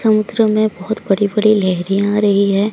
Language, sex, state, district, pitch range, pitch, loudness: Hindi, female, Odisha, Sambalpur, 195-215 Hz, 210 Hz, -15 LUFS